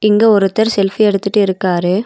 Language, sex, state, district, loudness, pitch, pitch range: Tamil, female, Tamil Nadu, Nilgiris, -13 LUFS, 200 Hz, 190-215 Hz